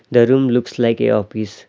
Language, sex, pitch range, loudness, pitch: English, male, 105-125 Hz, -16 LUFS, 115 Hz